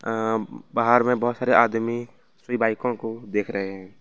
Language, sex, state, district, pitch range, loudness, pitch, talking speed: Hindi, male, Jharkhand, Ranchi, 110-120 Hz, -23 LUFS, 115 Hz, 180 wpm